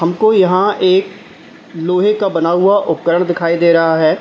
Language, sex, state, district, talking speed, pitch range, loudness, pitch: Hindi, male, Uttar Pradesh, Lalitpur, 170 wpm, 170-190 Hz, -13 LUFS, 175 Hz